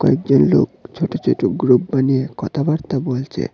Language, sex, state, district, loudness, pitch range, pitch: Bengali, male, Tripura, West Tripura, -18 LUFS, 130-150 Hz, 135 Hz